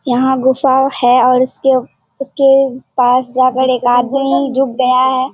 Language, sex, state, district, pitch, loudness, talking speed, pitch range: Hindi, female, Bihar, Purnia, 260 Hz, -12 LUFS, 155 wpm, 255-270 Hz